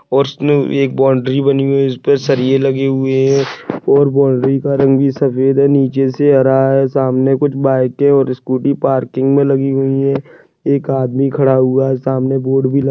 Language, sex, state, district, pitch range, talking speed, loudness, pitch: Hindi, male, Maharashtra, Dhule, 135-140 Hz, 185 wpm, -13 LUFS, 135 Hz